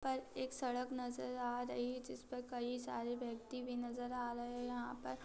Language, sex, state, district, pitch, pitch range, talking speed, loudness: Hindi, female, Bihar, East Champaran, 245 Hz, 240-250 Hz, 240 wpm, -44 LUFS